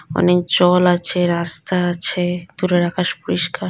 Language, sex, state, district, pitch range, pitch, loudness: Bengali, female, West Bengal, North 24 Parganas, 175-180 Hz, 180 Hz, -17 LUFS